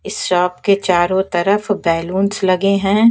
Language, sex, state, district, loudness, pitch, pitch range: Hindi, female, Haryana, Jhajjar, -16 LUFS, 190 Hz, 180-200 Hz